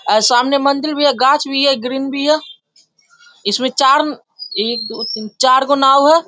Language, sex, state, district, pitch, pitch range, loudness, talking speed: Hindi, male, Bihar, Darbhanga, 270 Hz, 245-285 Hz, -14 LUFS, 200 wpm